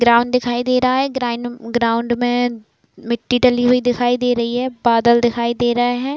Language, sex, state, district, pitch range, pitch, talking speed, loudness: Hindi, female, Uttar Pradesh, Budaun, 235-250 Hz, 245 Hz, 195 wpm, -17 LUFS